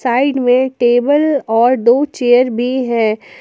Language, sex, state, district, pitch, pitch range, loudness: Hindi, female, Jharkhand, Palamu, 245 Hz, 240-265 Hz, -13 LUFS